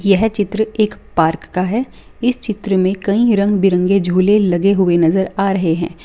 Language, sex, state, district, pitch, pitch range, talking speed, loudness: Hindi, female, Bihar, Samastipur, 195 Hz, 185-210 Hz, 190 wpm, -15 LUFS